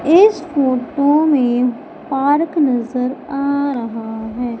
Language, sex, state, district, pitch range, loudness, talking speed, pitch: Hindi, female, Madhya Pradesh, Umaria, 245-295 Hz, -17 LUFS, 105 wpm, 275 Hz